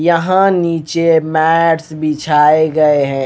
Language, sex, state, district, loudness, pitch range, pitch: Hindi, male, Haryana, Rohtak, -13 LUFS, 150-165 Hz, 160 Hz